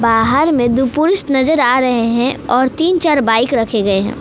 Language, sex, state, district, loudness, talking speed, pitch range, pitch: Hindi, female, West Bengal, Alipurduar, -13 LUFS, 215 wpm, 230-295 Hz, 255 Hz